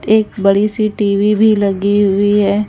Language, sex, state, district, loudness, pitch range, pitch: Hindi, female, Bihar, West Champaran, -13 LUFS, 200-215 Hz, 205 Hz